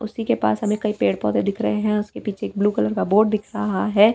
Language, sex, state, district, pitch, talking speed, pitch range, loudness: Hindi, female, Delhi, New Delhi, 210 Hz, 290 wpm, 195-215 Hz, -21 LUFS